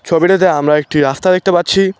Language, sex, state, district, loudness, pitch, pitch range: Bengali, male, West Bengal, Cooch Behar, -12 LUFS, 175 Hz, 150-190 Hz